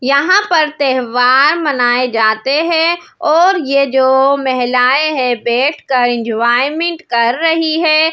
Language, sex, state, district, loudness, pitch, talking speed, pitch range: Hindi, female, Delhi, New Delhi, -12 LUFS, 275 Hz, 120 wpm, 245-320 Hz